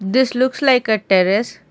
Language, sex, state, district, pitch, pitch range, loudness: English, female, Karnataka, Bangalore, 240 Hz, 195-260 Hz, -16 LUFS